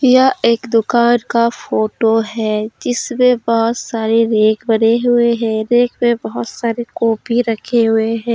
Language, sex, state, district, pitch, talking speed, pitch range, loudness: Hindi, female, Jharkhand, Deoghar, 230 Hz, 150 wpm, 225-240 Hz, -15 LUFS